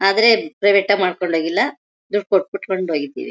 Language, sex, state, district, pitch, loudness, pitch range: Kannada, female, Karnataka, Mysore, 195 Hz, -18 LUFS, 175-200 Hz